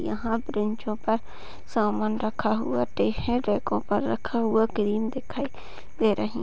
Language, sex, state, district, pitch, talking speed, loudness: Hindi, female, Maharashtra, Sindhudurg, 210 Hz, 140 wpm, -27 LUFS